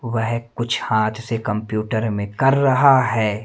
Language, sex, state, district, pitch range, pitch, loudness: Hindi, male, Madhya Pradesh, Umaria, 110-120 Hz, 115 Hz, -19 LUFS